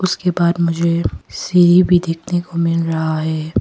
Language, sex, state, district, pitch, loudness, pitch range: Hindi, female, Arunachal Pradesh, Papum Pare, 170 Hz, -16 LUFS, 165-175 Hz